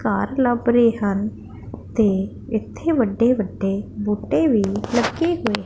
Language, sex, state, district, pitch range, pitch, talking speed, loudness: Punjabi, female, Punjab, Pathankot, 205-245 Hz, 225 Hz, 125 wpm, -20 LUFS